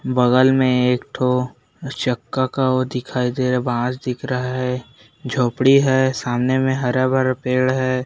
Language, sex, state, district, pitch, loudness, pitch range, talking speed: Hindi, male, Bihar, Bhagalpur, 130 Hz, -19 LUFS, 125-130 Hz, 165 wpm